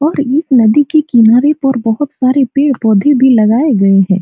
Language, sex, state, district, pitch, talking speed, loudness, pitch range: Hindi, female, Bihar, Supaul, 265 Hz, 185 wpm, -10 LUFS, 225-285 Hz